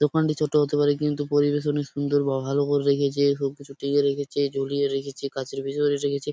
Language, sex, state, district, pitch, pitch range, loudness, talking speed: Bengali, male, West Bengal, Purulia, 140 Hz, 140-145 Hz, -24 LUFS, 210 wpm